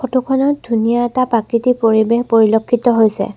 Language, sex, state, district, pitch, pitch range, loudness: Assamese, female, Assam, Sonitpur, 235 Hz, 225-250 Hz, -14 LUFS